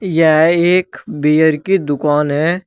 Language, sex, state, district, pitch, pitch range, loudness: Hindi, male, Uttar Pradesh, Shamli, 160 Hz, 150-175 Hz, -13 LUFS